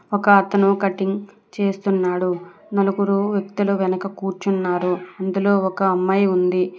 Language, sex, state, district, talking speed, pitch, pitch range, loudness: Telugu, female, Telangana, Hyderabad, 105 wpm, 195 Hz, 185-200 Hz, -20 LUFS